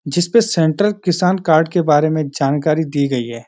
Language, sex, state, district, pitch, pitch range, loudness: Hindi, male, Uttarakhand, Uttarkashi, 155 Hz, 145-175 Hz, -16 LUFS